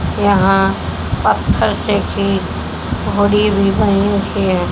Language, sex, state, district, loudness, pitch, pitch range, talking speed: Hindi, female, Haryana, Jhajjar, -15 LUFS, 195 Hz, 140-200 Hz, 65 wpm